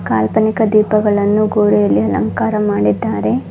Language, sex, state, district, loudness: Kannada, female, Karnataka, Bangalore, -14 LUFS